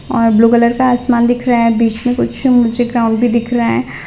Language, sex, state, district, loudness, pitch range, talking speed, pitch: Hindi, female, Gujarat, Valsad, -13 LUFS, 230-245 Hz, 250 wpm, 235 Hz